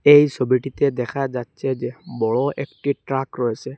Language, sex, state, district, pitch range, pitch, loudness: Bengali, male, Assam, Hailakandi, 125-140 Hz, 135 Hz, -21 LUFS